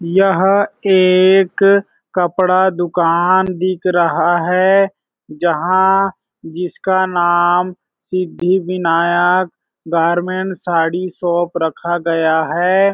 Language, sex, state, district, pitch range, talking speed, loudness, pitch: Hindi, male, Chhattisgarh, Balrampur, 175-190 Hz, 80 wpm, -15 LUFS, 180 Hz